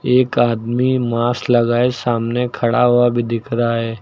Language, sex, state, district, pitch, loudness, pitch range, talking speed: Hindi, male, Uttar Pradesh, Lucknow, 120 Hz, -17 LUFS, 115-125 Hz, 165 wpm